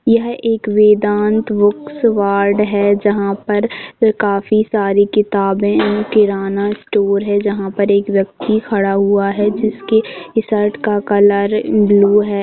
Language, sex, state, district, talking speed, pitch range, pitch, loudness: Hindi, female, Jharkhand, Jamtara, 130 wpm, 200-210 Hz, 205 Hz, -14 LUFS